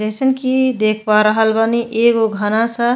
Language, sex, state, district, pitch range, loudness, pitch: Bhojpuri, female, Uttar Pradesh, Ghazipur, 215-240 Hz, -15 LUFS, 225 Hz